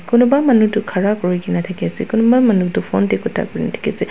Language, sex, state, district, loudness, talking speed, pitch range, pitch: Nagamese, female, Nagaland, Dimapur, -16 LUFS, 250 wpm, 180-235 Hz, 210 Hz